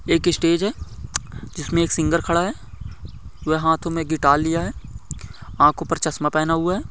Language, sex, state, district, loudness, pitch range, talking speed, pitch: Hindi, male, Maharashtra, Chandrapur, -21 LUFS, 150-170 Hz, 175 wpm, 165 Hz